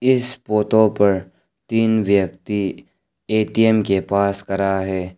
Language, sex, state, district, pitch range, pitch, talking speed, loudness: Hindi, male, Arunachal Pradesh, Lower Dibang Valley, 95-110 Hz, 100 Hz, 115 wpm, -19 LUFS